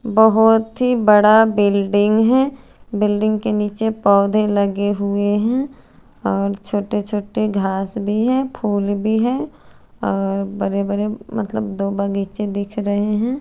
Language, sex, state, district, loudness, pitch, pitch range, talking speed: Hindi, female, Chandigarh, Chandigarh, -18 LUFS, 210 Hz, 200-220 Hz, 135 wpm